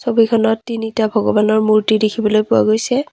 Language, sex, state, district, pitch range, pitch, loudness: Assamese, female, Assam, Kamrup Metropolitan, 215-230 Hz, 220 Hz, -15 LUFS